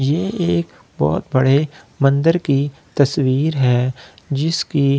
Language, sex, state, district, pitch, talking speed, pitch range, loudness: Hindi, male, Delhi, New Delhi, 140 Hz, 120 wpm, 130-155 Hz, -18 LUFS